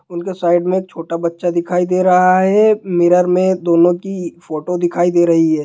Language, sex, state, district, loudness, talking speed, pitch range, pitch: Hindi, male, Bihar, Jahanabad, -15 LUFS, 190 wpm, 170-185 Hz, 175 Hz